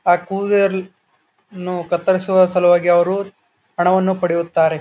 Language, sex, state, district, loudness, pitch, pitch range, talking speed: Kannada, male, Karnataka, Gulbarga, -17 LUFS, 180 Hz, 175-190 Hz, 85 wpm